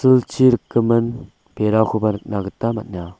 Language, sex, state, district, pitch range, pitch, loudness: Garo, male, Meghalaya, West Garo Hills, 105-115 Hz, 110 Hz, -19 LUFS